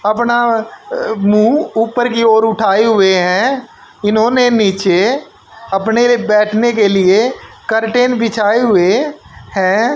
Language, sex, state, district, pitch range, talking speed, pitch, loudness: Hindi, male, Haryana, Jhajjar, 205-240 Hz, 115 wpm, 225 Hz, -13 LUFS